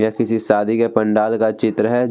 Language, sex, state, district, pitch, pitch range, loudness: Hindi, male, Bihar, Vaishali, 110 Hz, 110-115 Hz, -17 LUFS